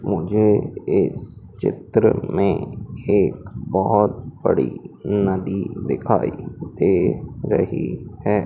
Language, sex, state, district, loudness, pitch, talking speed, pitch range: Hindi, male, Madhya Pradesh, Umaria, -21 LUFS, 105 Hz, 85 wpm, 95-105 Hz